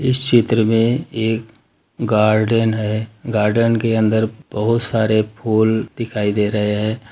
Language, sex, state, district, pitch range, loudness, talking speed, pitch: Hindi, male, Bihar, Darbhanga, 110-115 Hz, -18 LUFS, 145 wpm, 110 Hz